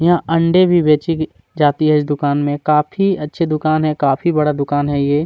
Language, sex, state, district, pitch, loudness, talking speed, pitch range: Hindi, male, Chhattisgarh, Kabirdham, 150 Hz, -16 LUFS, 205 wpm, 145-165 Hz